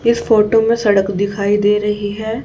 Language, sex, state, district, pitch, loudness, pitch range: Hindi, female, Haryana, Charkhi Dadri, 210 Hz, -15 LUFS, 205-225 Hz